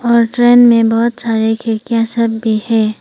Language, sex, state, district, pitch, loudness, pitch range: Hindi, female, Arunachal Pradesh, Papum Pare, 230 Hz, -12 LUFS, 225-235 Hz